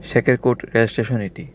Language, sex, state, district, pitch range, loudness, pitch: Bengali, male, Tripura, West Tripura, 115-125 Hz, -19 LUFS, 120 Hz